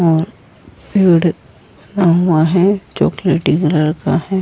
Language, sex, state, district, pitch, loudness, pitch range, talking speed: Hindi, female, Goa, North and South Goa, 170 Hz, -14 LUFS, 155-185 Hz, 120 wpm